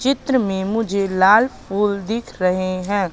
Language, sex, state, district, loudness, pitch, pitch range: Hindi, female, Madhya Pradesh, Katni, -19 LUFS, 200 Hz, 190-225 Hz